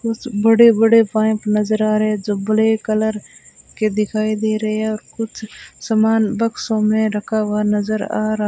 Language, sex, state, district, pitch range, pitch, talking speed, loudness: Hindi, female, Rajasthan, Bikaner, 215-220 Hz, 215 Hz, 185 wpm, -17 LUFS